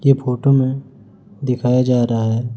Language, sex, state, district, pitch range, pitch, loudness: Hindi, male, Chhattisgarh, Raipur, 120-135 Hz, 125 Hz, -17 LUFS